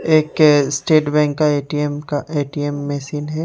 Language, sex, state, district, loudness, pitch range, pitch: Hindi, male, Haryana, Charkhi Dadri, -17 LUFS, 145-155 Hz, 150 Hz